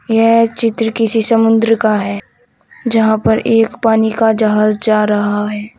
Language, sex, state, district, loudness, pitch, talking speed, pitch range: Hindi, female, Uttar Pradesh, Saharanpur, -13 LUFS, 225 Hz, 165 wpm, 215-225 Hz